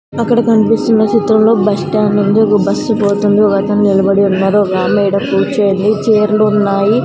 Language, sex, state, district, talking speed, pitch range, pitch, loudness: Telugu, female, Andhra Pradesh, Sri Satya Sai, 155 wpm, 200-220 Hz, 210 Hz, -12 LUFS